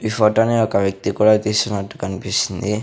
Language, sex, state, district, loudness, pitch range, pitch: Telugu, male, Andhra Pradesh, Sri Satya Sai, -18 LUFS, 100-110 Hz, 105 Hz